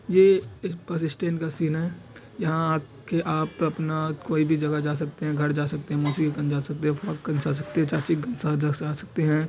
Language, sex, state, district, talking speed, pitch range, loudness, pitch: Hindi, male, Bihar, Supaul, 240 wpm, 150-165 Hz, -26 LUFS, 155 Hz